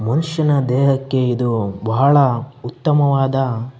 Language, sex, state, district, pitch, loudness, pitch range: Kannada, male, Karnataka, Bellary, 135 Hz, -17 LUFS, 120-140 Hz